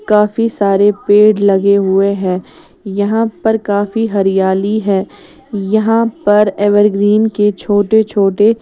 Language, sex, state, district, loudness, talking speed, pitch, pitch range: Hindi, female, Odisha, Sambalpur, -13 LUFS, 120 wpm, 205 Hz, 200-215 Hz